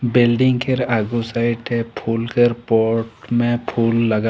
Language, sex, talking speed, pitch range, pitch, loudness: Sadri, male, 140 wpm, 115-120 Hz, 120 Hz, -19 LUFS